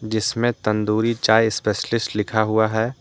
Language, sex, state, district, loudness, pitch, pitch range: Hindi, male, Jharkhand, Deoghar, -20 LUFS, 110 Hz, 110-115 Hz